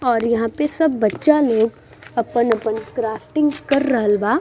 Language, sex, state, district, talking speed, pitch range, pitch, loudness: Bhojpuri, female, Bihar, East Champaran, 150 wpm, 220-295 Hz, 235 Hz, -19 LUFS